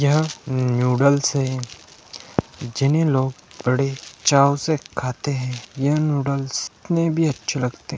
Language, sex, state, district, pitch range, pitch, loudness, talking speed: Hindi, male, Bihar, Gaya, 125-150 Hz, 140 Hz, -21 LUFS, 130 wpm